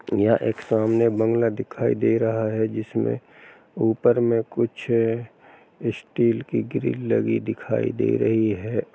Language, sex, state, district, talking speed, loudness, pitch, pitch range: Hindi, male, Uttar Pradesh, Jalaun, 140 wpm, -23 LUFS, 115 Hz, 110-115 Hz